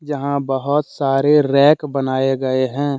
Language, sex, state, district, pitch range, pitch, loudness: Hindi, male, Jharkhand, Deoghar, 135-145 Hz, 140 Hz, -17 LUFS